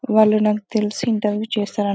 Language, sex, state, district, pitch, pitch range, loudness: Telugu, female, Telangana, Karimnagar, 215 Hz, 210-220 Hz, -19 LUFS